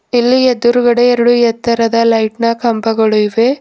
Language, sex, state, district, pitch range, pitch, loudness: Kannada, female, Karnataka, Bidar, 225-240 Hz, 235 Hz, -12 LUFS